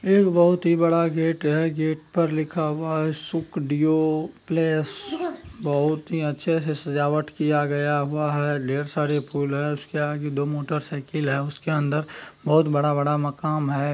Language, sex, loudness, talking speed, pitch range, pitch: Maithili, male, -24 LUFS, 165 wpm, 145-160 Hz, 150 Hz